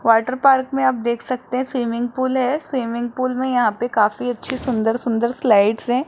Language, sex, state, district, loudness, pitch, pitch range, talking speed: Hindi, male, Rajasthan, Jaipur, -19 LUFS, 245 Hz, 235-260 Hz, 215 wpm